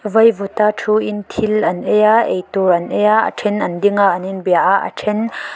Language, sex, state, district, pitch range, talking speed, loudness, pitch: Mizo, female, Mizoram, Aizawl, 190-215 Hz, 235 wpm, -15 LUFS, 210 Hz